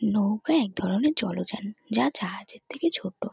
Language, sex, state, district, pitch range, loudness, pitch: Bengali, female, West Bengal, North 24 Parganas, 205-270 Hz, -27 LUFS, 215 Hz